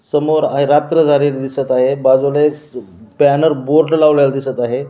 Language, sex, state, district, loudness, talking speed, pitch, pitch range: Marathi, male, Maharashtra, Washim, -13 LUFS, 145 wpm, 145 Hz, 135-150 Hz